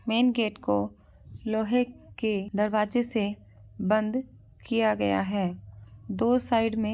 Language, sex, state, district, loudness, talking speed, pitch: Angika, male, Bihar, Madhepura, -27 LUFS, 120 wpm, 215 Hz